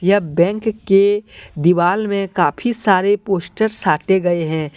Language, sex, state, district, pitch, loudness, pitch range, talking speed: Hindi, male, Jharkhand, Deoghar, 190 Hz, -17 LUFS, 175-205 Hz, 140 wpm